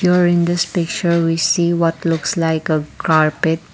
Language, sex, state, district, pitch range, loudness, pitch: English, female, Assam, Kamrup Metropolitan, 160-175 Hz, -17 LUFS, 165 Hz